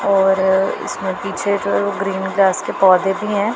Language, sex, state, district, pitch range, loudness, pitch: Hindi, female, Punjab, Pathankot, 190-200 Hz, -17 LUFS, 195 Hz